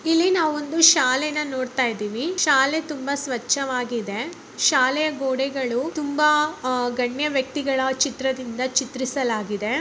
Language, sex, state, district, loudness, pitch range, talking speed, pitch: Kannada, male, Karnataka, Mysore, -22 LUFS, 255-300 Hz, 90 wpm, 265 Hz